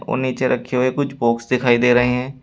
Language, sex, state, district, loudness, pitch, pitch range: Hindi, male, Uttar Pradesh, Shamli, -18 LUFS, 125 Hz, 125-130 Hz